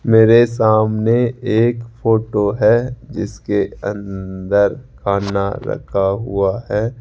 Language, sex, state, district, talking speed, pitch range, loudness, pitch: Hindi, male, Rajasthan, Jaipur, 95 wpm, 100-115 Hz, -17 LUFS, 110 Hz